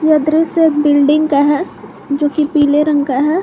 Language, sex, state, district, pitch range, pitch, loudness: Hindi, female, Jharkhand, Garhwa, 290-310 Hz, 300 Hz, -13 LUFS